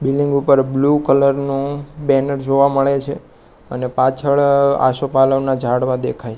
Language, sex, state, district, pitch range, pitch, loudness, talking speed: Gujarati, male, Gujarat, Gandhinagar, 135-140 Hz, 135 Hz, -16 LUFS, 130 wpm